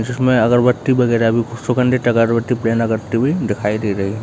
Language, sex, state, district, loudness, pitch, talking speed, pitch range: Hindi, male, Bihar, Jahanabad, -16 LUFS, 115 Hz, 185 wpm, 115-125 Hz